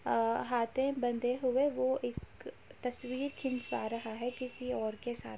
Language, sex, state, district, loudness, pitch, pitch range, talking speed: Hindi, female, Uttar Pradesh, Jalaun, -35 LUFS, 250 Hz, 235-255 Hz, 165 wpm